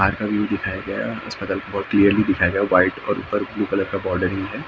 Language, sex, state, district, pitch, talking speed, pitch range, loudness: Hindi, male, Maharashtra, Mumbai Suburban, 100 Hz, 280 wpm, 95-105 Hz, -21 LUFS